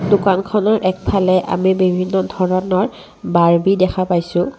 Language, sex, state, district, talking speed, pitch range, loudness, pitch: Assamese, female, Assam, Kamrup Metropolitan, 105 wpm, 185-195 Hz, -16 LUFS, 185 Hz